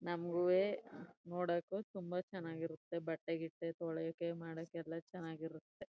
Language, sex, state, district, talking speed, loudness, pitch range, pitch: Kannada, female, Karnataka, Chamarajanagar, 100 wpm, -42 LUFS, 165-180 Hz, 170 Hz